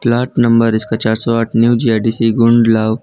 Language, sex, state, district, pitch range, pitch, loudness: Hindi, male, Gujarat, Valsad, 110-120 Hz, 115 Hz, -13 LUFS